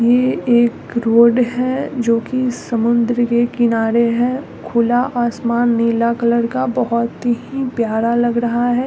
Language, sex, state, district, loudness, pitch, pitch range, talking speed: Hindi, female, Bihar, Gopalganj, -16 LUFS, 235 Hz, 235-245 Hz, 135 wpm